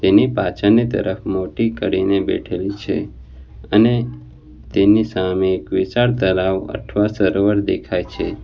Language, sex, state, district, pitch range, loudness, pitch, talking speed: Gujarati, male, Gujarat, Valsad, 95-105 Hz, -18 LUFS, 95 Hz, 120 wpm